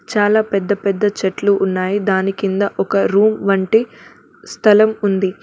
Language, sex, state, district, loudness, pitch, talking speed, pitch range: Telugu, female, Telangana, Mahabubabad, -16 LUFS, 200 Hz, 130 wpm, 195-210 Hz